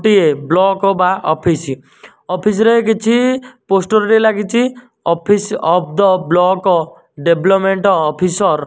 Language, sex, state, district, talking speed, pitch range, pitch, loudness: Odia, male, Odisha, Nuapada, 110 wpm, 170-215 Hz, 195 Hz, -14 LUFS